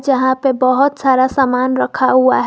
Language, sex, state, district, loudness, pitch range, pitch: Hindi, female, Jharkhand, Garhwa, -14 LUFS, 255-270 Hz, 260 Hz